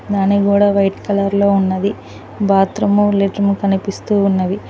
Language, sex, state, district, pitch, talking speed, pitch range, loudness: Telugu, female, Telangana, Mahabubabad, 200 Hz, 140 wpm, 195-200 Hz, -15 LUFS